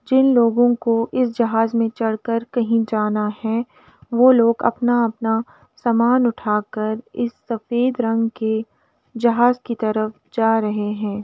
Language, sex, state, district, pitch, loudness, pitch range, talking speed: Hindi, female, Uttar Pradesh, Jalaun, 230 Hz, -19 LUFS, 220-240 Hz, 135 wpm